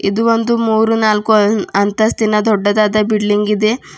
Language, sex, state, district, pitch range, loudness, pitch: Kannada, female, Karnataka, Bidar, 210-220 Hz, -14 LUFS, 215 Hz